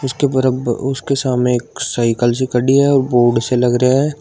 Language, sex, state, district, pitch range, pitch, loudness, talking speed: Hindi, male, Uttar Pradesh, Shamli, 120-135 Hz, 125 Hz, -15 LUFS, 170 wpm